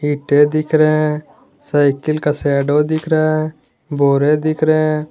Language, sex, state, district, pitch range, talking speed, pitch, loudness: Hindi, male, Jharkhand, Garhwa, 145-155 Hz, 165 wpm, 150 Hz, -15 LUFS